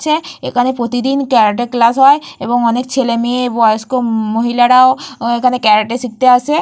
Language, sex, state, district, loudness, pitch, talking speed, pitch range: Bengali, female, West Bengal, Purulia, -13 LUFS, 245 Hz, 145 wpm, 235-260 Hz